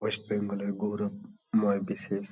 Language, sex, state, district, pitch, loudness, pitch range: Bengali, male, West Bengal, Kolkata, 105 Hz, -31 LUFS, 100-155 Hz